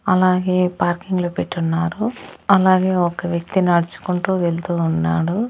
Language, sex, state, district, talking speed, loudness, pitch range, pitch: Telugu, female, Andhra Pradesh, Annamaya, 120 wpm, -19 LUFS, 170-185 Hz, 180 Hz